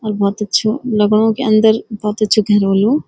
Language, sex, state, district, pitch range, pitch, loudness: Garhwali, female, Uttarakhand, Uttarkashi, 210-220 Hz, 215 Hz, -14 LUFS